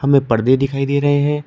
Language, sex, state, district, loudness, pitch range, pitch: Hindi, male, Uttar Pradesh, Shamli, -16 LUFS, 135-145 Hz, 140 Hz